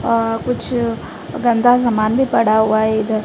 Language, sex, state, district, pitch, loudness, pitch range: Hindi, female, Odisha, Malkangiri, 230 Hz, -16 LUFS, 220-245 Hz